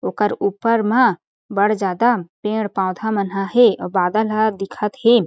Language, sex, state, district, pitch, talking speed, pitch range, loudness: Chhattisgarhi, female, Chhattisgarh, Jashpur, 210 Hz, 150 wpm, 195-225 Hz, -18 LUFS